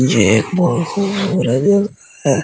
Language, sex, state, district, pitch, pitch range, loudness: Hindi, male, Delhi, New Delhi, 170 Hz, 130-200 Hz, -16 LUFS